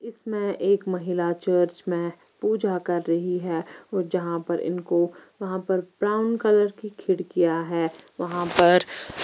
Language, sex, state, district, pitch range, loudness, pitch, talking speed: Hindi, female, Bihar, Patna, 175-200 Hz, -24 LUFS, 180 Hz, 150 wpm